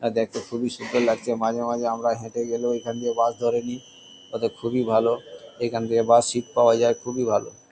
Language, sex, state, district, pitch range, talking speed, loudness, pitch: Bengali, male, West Bengal, Kolkata, 115-120 Hz, 200 wpm, -23 LUFS, 120 Hz